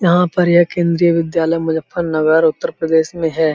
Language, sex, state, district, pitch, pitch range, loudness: Hindi, male, Uttar Pradesh, Muzaffarnagar, 165 Hz, 160-175 Hz, -15 LUFS